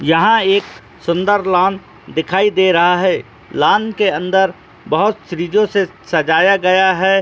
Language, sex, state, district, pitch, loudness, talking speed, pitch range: Hindi, male, Jharkhand, Jamtara, 190 Hz, -14 LUFS, 140 wpm, 175-200 Hz